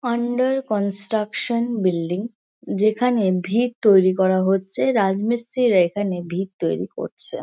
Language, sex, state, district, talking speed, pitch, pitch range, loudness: Bengali, female, West Bengal, Kolkata, 105 wpm, 205 Hz, 185-235 Hz, -20 LUFS